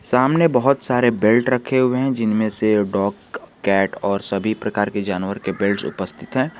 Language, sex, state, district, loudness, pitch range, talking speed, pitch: Hindi, male, Jharkhand, Garhwa, -19 LUFS, 100-125 Hz, 190 wpm, 110 Hz